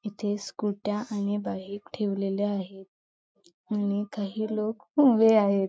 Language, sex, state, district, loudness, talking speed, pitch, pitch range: Marathi, female, Maharashtra, Chandrapur, -27 LUFS, 115 wpm, 205 Hz, 200-215 Hz